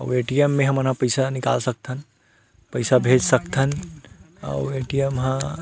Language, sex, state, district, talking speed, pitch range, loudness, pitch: Chhattisgarhi, male, Chhattisgarh, Rajnandgaon, 140 wpm, 125-135 Hz, -21 LUFS, 130 Hz